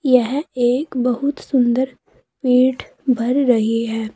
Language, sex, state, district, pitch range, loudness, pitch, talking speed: Hindi, female, Uttar Pradesh, Saharanpur, 240-265 Hz, -18 LUFS, 250 Hz, 115 wpm